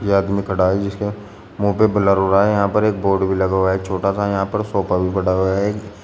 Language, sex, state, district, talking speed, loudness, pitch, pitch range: Hindi, male, Uttar Pradesh, Shamli, 280 wpm, -18 LUFS, 100 Hz, 95-105 Hz